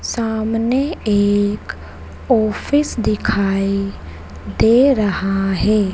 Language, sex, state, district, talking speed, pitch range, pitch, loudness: Hindi, female, Madhya Pradesh, Dhar, 70 wpm, 195-225 Hz, 205 Hz, -17 LUFS